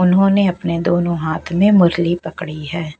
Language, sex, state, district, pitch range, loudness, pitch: Hindi, female, Bihar, West Champaran, 165-180 Hz, -16 LUFS, 170 Hz